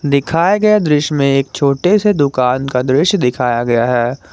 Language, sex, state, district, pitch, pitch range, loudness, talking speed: Hindi, male, Jharkhand, Garhwa, 140 Hz, 125-165 Hz, -13 LUFS, 180 wpm